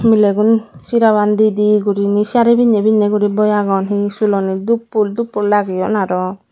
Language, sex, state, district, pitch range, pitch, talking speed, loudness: Chakma, female, Tripura, Dhalai, 200-220 Hz, 210 Hz, 165 wpm, -14 LUFS